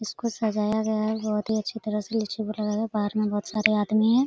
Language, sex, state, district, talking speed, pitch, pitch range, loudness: Hindi, female, Jharkhand, Sahebganj, 255 wpm, 215 Hz, 210-220 Hz, -26 LUFS